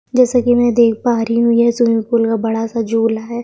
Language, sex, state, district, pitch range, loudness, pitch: Hindi, female, Chhattisgarh, Sukma, 225-240 Hz, -15 LUFS, 235 Hz